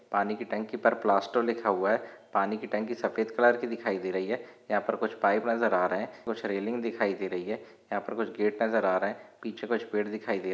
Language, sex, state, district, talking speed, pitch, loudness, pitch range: Hindi, male, Maharashtra, Nagpur, 255 wpm, 110 Hz, -30 LUFS, 100-115 Hz